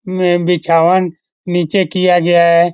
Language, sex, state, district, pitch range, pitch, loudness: Hindi, male, Bihar, Lakhisarai, 170-185 Hz, 175 Hz, -13 LUFS